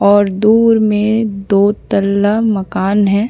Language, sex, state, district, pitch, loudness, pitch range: Hindi, female, Chhattisgarh, Bastar, 205 Hz, -13 LUFS, 200-215 Hz